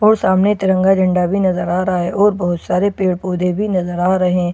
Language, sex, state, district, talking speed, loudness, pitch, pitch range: Hindi, female, Bihar, Katihar, 265 wpm, -16 LUFS, 185 Hz, 180-195 Hz